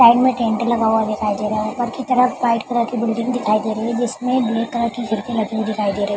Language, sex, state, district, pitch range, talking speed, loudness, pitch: Hindi, female, Bihar, Madhepura, 220-240 Hz, 300 wpm, -19 LUFS, 235 Hz